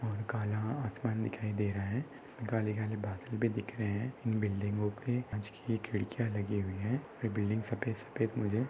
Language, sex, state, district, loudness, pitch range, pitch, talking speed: Hindi, male, Maharashtra, Solapur, -36 LUFS, 105-115 Hz, 110 Hz, 195 wpm